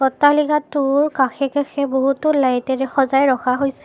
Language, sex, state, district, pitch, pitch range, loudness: Assamese, female, Assam, Kamrup Metropolitan, 275 Hz, 265-290 Hz, -18 LUFS